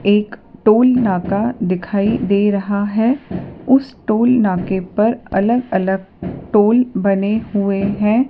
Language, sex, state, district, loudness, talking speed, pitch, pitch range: Hindi, female, Madhya Pradesh, Dhar, -16 LUFS, 125 wpm, 210 Hz, 195-235 Hz